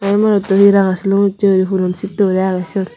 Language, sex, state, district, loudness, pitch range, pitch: Chakma, female, Tripura, Unakoti, -14 LUFS, 185-200 Hz, 195 Hz